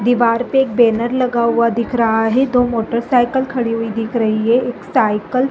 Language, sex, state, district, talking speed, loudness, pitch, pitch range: Hindi, female, Chhattisgarh, Bilaspur, 220 wpm, -16 LUFS, 235 Hz, 230-250 Hz